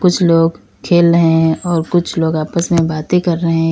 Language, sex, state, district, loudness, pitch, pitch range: Hindi, female, Uttar Pradesh, Lalitpur, -14 LUFS, 170 Hz, 165-175 Hz